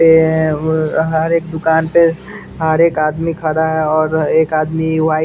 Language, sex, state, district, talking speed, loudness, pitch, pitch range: Hindi, male, Bihar, West Champaran, 185 wpm, -14 LUFS, 160 Hz, 155-165 Hz